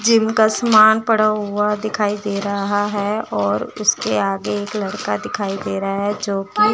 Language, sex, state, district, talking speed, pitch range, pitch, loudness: Hindi, female, Chandigarh, Chandigarh, 170 wpm, 200-215 Hz, 205 Hz, -18 LUFS